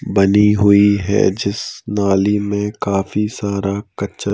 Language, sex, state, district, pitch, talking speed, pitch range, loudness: Hindi, male, Madhya Pradesh, Bhopal, 100 Hz, 140 wpm, 100-105 Hz, -16 LUFS